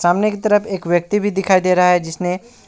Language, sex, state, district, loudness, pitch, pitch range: Hindi, male, West Bengal, Alipurduar, -17 LUFS, 185 Hz, 180-205 Hz